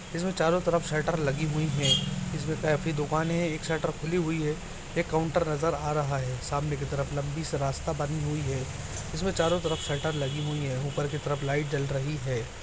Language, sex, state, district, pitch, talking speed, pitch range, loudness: Hindi, male, Bihar, Araria, 155 Hz, 215 wpm, 145-165 Hz, -29 LUFS